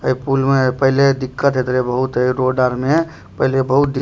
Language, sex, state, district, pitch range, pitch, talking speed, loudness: Maithili, male, Bihar, Supaul, 130-135 Hz, 130 Hz, 240 wpm, -16 LUFS